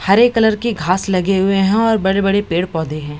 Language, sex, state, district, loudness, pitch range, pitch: Hindi, female, Bihar, Samastipur, -15 LUFS, 180-215 Hz, 195 Hz